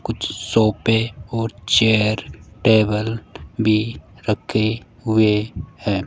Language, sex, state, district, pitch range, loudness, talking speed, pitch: Hindi, male, Rajasthan, Jaipur, 105-115 Hz, -19 LUFS, 90 wpm, 110 Hz